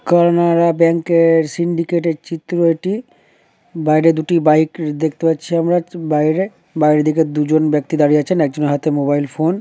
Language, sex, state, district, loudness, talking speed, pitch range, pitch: Bengali, male, West Bengal, Dakshin Dinajpur, -16 LUFS, 150 wpm, 155-170 Hz, 165 Hz